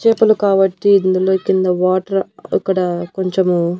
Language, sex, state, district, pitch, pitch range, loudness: Telugu, female, Andhra Pradesh, Annamaya, 190 Hz, 185-195 Hz, -15 LUFS